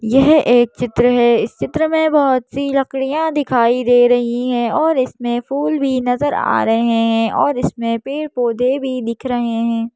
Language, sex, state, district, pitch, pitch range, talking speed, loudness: Hindi, female, Madhya Pradesh, Bhopal, 245 Hz, 235-275 Hz, 175 wpm, -16 LUFS